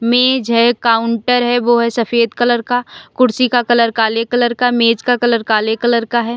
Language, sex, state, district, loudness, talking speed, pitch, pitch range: Hindi, female, Uttar Pradesh, Lalitpur, -14 LUFS, 205 wpm, 235 Hz, 230-245 Hz